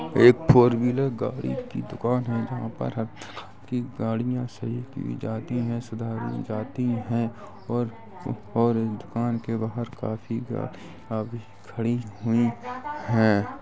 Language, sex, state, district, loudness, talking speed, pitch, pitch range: Hindi, male, Uttar Pradesh, Jalaun, -26 LUFS, 135 wpm, 115 Hz, 110-120 Hz